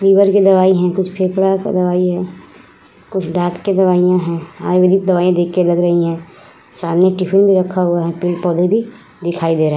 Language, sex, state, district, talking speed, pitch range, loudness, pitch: Hindi, female, Uttar Pradesh, Budaun, 200 wpm, 175-190 Hz, -14 LUFS, 180 Hz